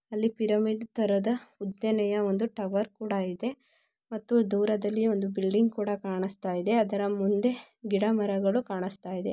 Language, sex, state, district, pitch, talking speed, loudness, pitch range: Kannada, female, Karnataka, Mysore, 210 Hz, 130 wpm, -29 LUFS, 200-225 Hz